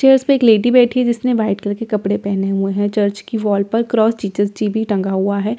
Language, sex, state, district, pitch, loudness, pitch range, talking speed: Hindi, female, Bihar, Katihar, 210 Hz, -16 LUFS, 200-230 Hz, 290 wpm